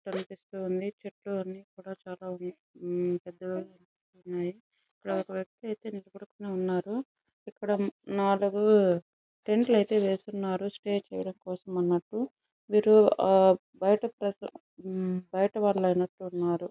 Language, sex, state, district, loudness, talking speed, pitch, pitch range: Telugu, female, Andhra Pradesh, Chittoor, -29 LUFS, 110 wpm, 190 Hz, 185-205 Hz